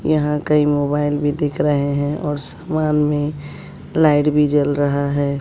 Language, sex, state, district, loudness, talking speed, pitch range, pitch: Hindi, female, Bihar, West Champaran, -18 LUFS, 165 wpm, 145-150 Hz, 145 Hz